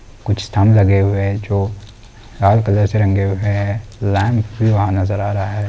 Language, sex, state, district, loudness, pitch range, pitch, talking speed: Hindi, male, Chhattisgarh, Bilaspur, -16 LUFS, 100-110 Hz, 100 Hz, 200 wpm